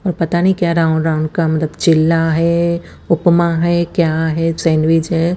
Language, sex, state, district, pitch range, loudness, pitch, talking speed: Hindi, female, Chandigarh, Chandigarh, 160-170 Hz, -15 LUFS, 165 Hz, 180 wpm